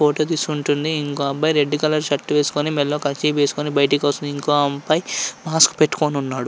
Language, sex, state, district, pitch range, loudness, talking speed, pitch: Telugu, male, Andhra Pradesh, Visakhapatnam, 145-155 Hz, -19 LUFS, 165 wpm, 150 Hz